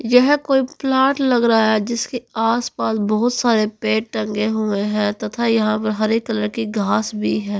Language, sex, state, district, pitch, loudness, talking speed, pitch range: Hindi, female, Haryana, Charkhi Dadri, 220 Hz, -19 LUFS, 190 wpm, 215-245 Hz